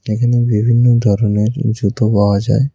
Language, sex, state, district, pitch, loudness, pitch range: Bengali, male, West Bengal, Cooch Behar, 115 Hz, -14 LUFS, 105-120 Hz